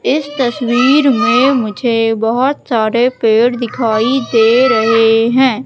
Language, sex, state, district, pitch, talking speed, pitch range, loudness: Hindi, female, Madhya Pradesh, Katni, 240 Hz, 115 wpm, 225-260 Hz, -12 LUFS